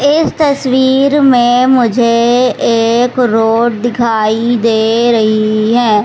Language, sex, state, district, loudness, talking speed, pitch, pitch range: Hindi, male, Madhya Pradesh, Katni, -10 LUFS, 100 wpm, 240 Hz, 225-255 Hz